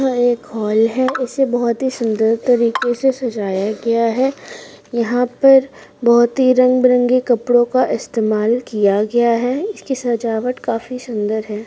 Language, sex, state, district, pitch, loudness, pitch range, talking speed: Hindi, female, Rajasthan, Churu, 240 Hz, -16 LUFS, 230-255 Hz, 145 wpm